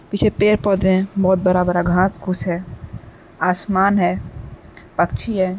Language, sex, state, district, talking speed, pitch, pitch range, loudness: Hindi, male, Uttar Pradesh, Jalaun, 150 wpm, 185 Hz, 175-195 Hz, -18 LUFS